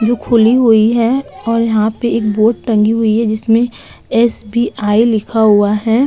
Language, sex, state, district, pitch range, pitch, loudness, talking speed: Hindi, female, Uttar Pradesh, Etah, 215-235 Hz, 225 Hz, -13 LUFS, 170 wpm